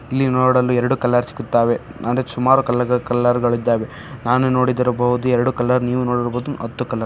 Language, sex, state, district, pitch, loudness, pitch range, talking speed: Kannada, male, Karnataka, Shimoga, 125 Hz, -18 LUFS, 120-125 Hz, 160 wpm